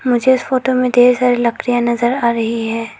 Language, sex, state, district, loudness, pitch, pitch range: Hindi, female, Arunachal Pradesh, Lower Dibang Valley, -15 LUFS, 245 Hz, 235-250 Hz